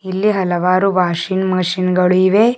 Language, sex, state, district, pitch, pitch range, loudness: Kannada, male, Karnataka, Bidar, 185 Hz, 180-190 Hz, -15 LUFS